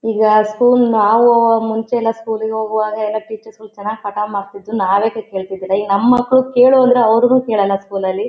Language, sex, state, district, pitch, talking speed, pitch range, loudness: Kannada, female, Karnataka, Shimoga, 220 Hz, 180 wpm, 210-235 Hz, -14 LUFS